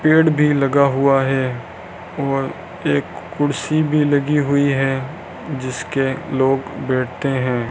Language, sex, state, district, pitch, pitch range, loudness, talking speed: Hindi, male, Rajasthan, Bikaner, 135 Hz, 130-145 Hz, -18 LUFS, 125 wpm